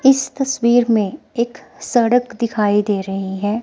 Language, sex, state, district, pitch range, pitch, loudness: Hindi, female, Himachal Pradesh, Shimla, 205-245 Hz, 235 Hz, -18 LUFS